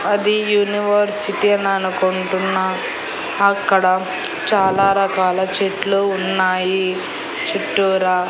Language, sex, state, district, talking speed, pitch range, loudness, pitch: Telugu, female, Andhra Pradesh, Annamaya, 65 wpm, 185-200 Hz, -18 LUFS, 195 Hz